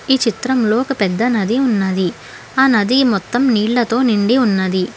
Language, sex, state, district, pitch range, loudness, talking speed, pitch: Telugu, female, Telangana, Hyderabad, 205-255 Hz, -15 LUFS, 145 wpm, 235 Hz